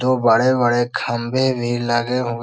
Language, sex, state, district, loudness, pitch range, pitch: Hindi, male, Bihar, Jahanabad, -18 LUFS, 120-125 Hz, 120 Hz